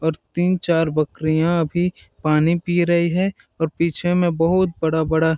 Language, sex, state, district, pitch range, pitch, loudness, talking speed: Hindi, male, Chhattisgarh, Balrampur, 160-175 Hz, 170 Hz, -20 LUFS, 155 wpm